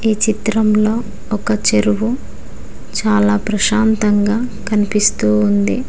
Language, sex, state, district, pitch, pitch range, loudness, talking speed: Telugu, female, Telangana, Mahabubabad, 210 Hz, 205-220 Hz, -15 LUFS, 80 wpm